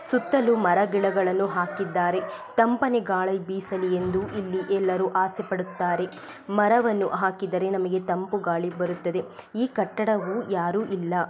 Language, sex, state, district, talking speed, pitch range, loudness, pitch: Kannada, female, Karnataka, Belgaum, 115 wpm, 180-210 Hz, -25 LUFS, 190 Hz